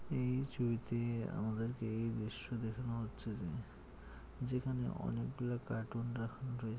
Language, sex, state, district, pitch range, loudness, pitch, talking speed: Bengali, male, West Bengal, Malda, 110-125 Hz, -41 LUFS, 115 Hz, 125 wpm